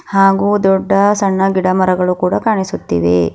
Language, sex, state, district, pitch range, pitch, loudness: Kannada, female, Karnataka, Bidar, 180-195 Hz, 190 Hz, -13 LUFS